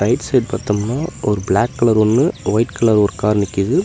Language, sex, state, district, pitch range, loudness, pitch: Tamil, male, Tamil Nadu, Namakkal, 105-120 Hz, -17 LUFS, 110 Hz